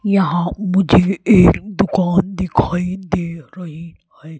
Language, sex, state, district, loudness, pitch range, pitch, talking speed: Hindi, female, Maharashtra, Gondia, -16 LUFS, 175-195 Hz, 185 Hz, 110 wpm